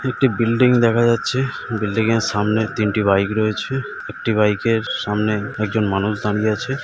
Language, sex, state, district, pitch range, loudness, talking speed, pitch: Bengali, male, West Bengal, Purulia, 105-120 Hz, -19 LUFS, 165 wpm, 110 Hz